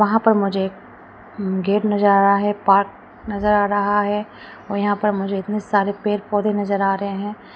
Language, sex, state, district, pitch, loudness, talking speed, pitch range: Hindi, female, Arunachal Pradesh, Lower Dibang Valley, 205 Hz, -19 LUFS, 200 wpm, 200-210 Hz